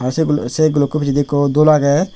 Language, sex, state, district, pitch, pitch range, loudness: Chakma, male, Tripura, West Tripura, 145 Hz, 140-155 Hz, -15 LUFS